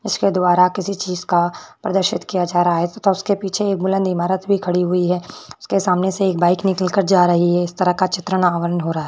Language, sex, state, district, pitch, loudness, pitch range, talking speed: Hindi, female, Rajasthan, Churu, 180 Hz, -18 LUFS, 175-195 Hz, 245 wpm